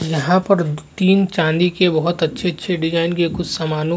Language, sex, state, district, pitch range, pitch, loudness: Hindi, male, Chhattisgarh, Rajnandgaon, 160-180 Hz, 170 Hz, -18 LUFS